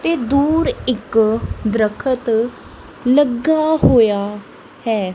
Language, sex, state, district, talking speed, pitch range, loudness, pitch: Punjabi, female, Punjab, Kapurthala, 80 wpm, 220-280 Hz, -17 LUFS, 240 Hz